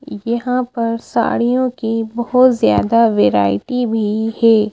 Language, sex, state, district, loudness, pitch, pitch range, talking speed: Hindi, female, Madhya Pradesh, Bhopal, -16 LUFS, 230 Hz, 220-245 Hz, 115 wpm